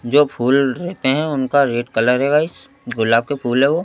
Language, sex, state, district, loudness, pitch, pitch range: Hindi, male, Madhya Pradesh, Bhopal, -17 LUFS, 140 Hz, 120-150 Hz